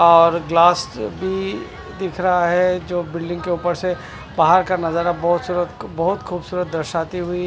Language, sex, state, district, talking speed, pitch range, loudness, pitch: Hindi, male, Punjab, Fazilka, 160 wpm, 170-180 Hz, -19 LUFS, 175 Hz